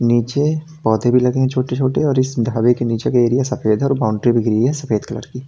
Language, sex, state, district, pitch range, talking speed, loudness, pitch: Hindi, male, Uttar Pradesh, Lalitpur, 115-130 Hz, 250 wpm, -17 LUFS, 125 Hz